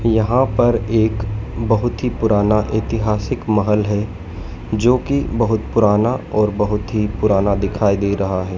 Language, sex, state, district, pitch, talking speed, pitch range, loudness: Hindi, male, Madhya Pradesh, Dhar, 105 Hz, 145 wpm, 105-115 Hz, -18 LUFS